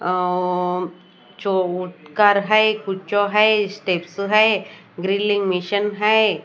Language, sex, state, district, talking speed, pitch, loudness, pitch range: Hindi, female, Odisha, Nuapada, 110 wpm, 200 Hz, -19 LUFS, 180-210 Hz